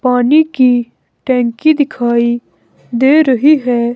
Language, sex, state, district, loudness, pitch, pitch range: Hindi, female, Himachal Pradesh, Shimla, -12 LUFS, 250 Hz, 240-285 Hz